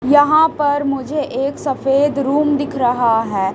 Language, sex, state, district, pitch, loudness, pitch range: Hindi, female, Haryana, Rohtak, 280 Hz, -16 LUFS, 260-290 Hz